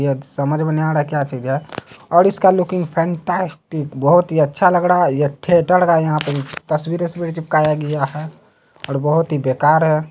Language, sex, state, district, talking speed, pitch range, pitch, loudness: Hindi, male, Bihar, Saharsa, 200 wpm, 145-175 Hz, 155 Hz, -17 LUFS